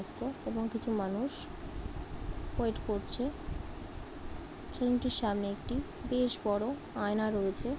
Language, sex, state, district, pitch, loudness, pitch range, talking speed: Bengali, female, West Bengal, Dakshin Dinajpur, 225 Hz, -35 LUFS, 205-250 Hz, 90 wpm